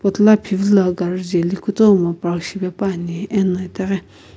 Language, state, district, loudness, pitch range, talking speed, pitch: Sumi, Nagaland, Kohima, -18 LUFS, 175-200 Hz, 125 wpm, 190 Hz